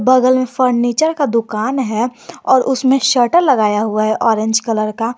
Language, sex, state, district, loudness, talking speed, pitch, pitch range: Hindi, male, Jharkhand, Garhwa, -15 LUFS, 175 wpm, 240 Hz, 220-260 Hz